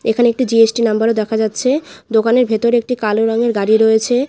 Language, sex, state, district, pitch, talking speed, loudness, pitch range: Bengali, female, West Bengal, Alipurduar, 225 Hz, 195 wpm, -15 LUFS, 220-245 Hz